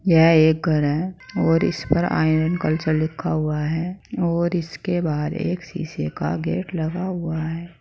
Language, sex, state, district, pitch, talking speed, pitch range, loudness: Hindi, female, Uttar Pradesh, Saharanpur, 160 Hz, 170 wpm, 155-175 Hz, -22 LUFS